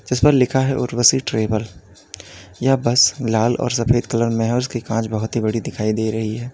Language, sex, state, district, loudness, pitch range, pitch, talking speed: Hindi, male, Uttar Pradesh, Lalitpur, -18 LUFS, 110-125 Hz, 115 Hz, 220 wpm